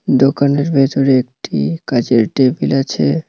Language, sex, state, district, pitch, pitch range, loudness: Bengali, male, West Bengal, Cooch Behar, 135 Hz, 125-140 Hz, -14 LUFS